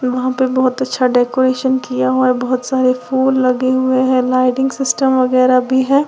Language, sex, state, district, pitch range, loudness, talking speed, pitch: Hindi, female, Uttar Pradesh, Lalitpur, 255-260 Hz, -14 LUFS, 185 wpm, 255 Hz